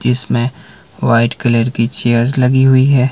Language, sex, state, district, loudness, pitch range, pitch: Hindi, male, Himachal Pradesh, Shimla, -13 LUFS, 115-130 Hz, 125 Hz